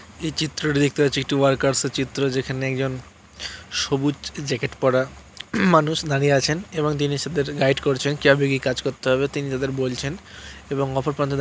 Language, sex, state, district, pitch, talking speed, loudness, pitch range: Bengali, male, West Bengal, Purulia, 140 Hz, 200 wpm, -22 LUFS, 135-145 Hz